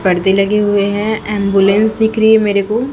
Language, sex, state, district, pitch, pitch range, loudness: Hindi, female, Chhattisgarh, Raipur, 205 Hz, 200-220 Hz, -13 LUFS